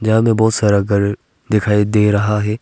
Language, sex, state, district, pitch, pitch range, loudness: Hindi, male, Arunachal Pradesh, Longding, 105 Hz, 105-110 Hz, -15 LUFS